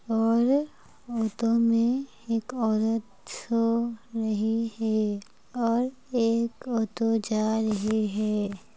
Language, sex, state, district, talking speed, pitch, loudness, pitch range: Hindi, female, Uttar Pradesh, Varanasi, 95 wpm, 225 Hz, -27 LUFS, 220-235 Hz